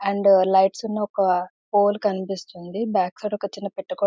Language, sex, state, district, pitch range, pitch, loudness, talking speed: Telugu, female, Andhra Pradesh, Visakhapatnam, 190-210 Hz, 200 Hz, -22 LUFS, 175 wpm